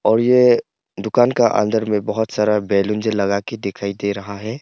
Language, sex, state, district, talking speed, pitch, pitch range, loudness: Hindi, male, Arunachal Pradesh, Papum Pare, 210 wpm, 105 Hz, 100-115 Hz, -18 LUFS